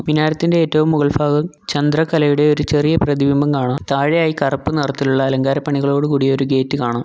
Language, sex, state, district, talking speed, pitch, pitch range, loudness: Malayalam, male, Kerala, Kollam, 145 wpm, 145 Hz, 140-155 Hz, -16 LUFS